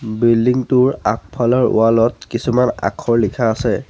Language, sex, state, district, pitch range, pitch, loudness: Assamese, male, Assam, Sonitpur, 115-125 Hz, 115 Hz, -16 LUFS